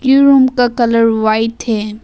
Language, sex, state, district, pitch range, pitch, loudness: Hindi, female, Arunachal Pradesh, Papum Pare, 220-260 Hz, 230 Hz, -12 LUFS